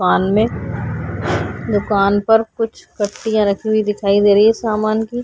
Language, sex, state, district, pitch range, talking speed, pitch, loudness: Hindi, female, Uttar Pradesh, Jyotiba Phule Nagar, 205-220 Hz, 150 wpm, 215 Hz, -17 LUFS